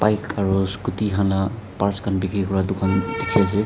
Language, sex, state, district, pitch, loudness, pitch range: Nagamese, male, Nagaland, Dimapur, 100 Hz, -22 LUFS, 95-105 Hz